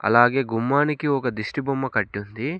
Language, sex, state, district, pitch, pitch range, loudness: Telugu, male, Telangana, Komaram Bheem, 130 Hz, 110-140 Hz, -23 LUFS